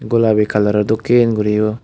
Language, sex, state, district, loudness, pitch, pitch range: Chakma, male, Tripura, West Tripura, -15 LUFS, 110 Hz, 105-115 Hz